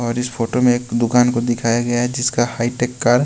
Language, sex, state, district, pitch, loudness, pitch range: Hindi, male, Bihar, West Champaran, 120 Hz, -18 LUFS, 120-125 Hz